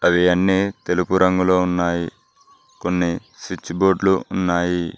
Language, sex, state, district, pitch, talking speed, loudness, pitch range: Telugu, male, Telangana, Mahabubabad, 90 Hz, 120 wpm, -19 LUFS, 90-95 Hz